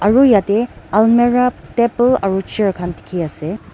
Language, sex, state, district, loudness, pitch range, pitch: Nagamese, female, Nagaland, Dimapur, -16 LUFS, 190-240 Hz, 215 Hz